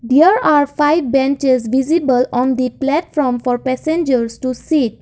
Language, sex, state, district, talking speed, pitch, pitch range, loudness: English, female, Assam, Kamrup Metropolitan, 145 wpm, 265 Hz, 255-295 Hz, -15 LUFS